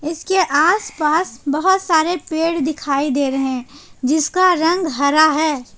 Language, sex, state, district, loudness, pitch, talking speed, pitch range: Hindi, female, Jharkhand, Palamu, -17 LUFS, 310 Hz, 135 wpm, 285-335 Hz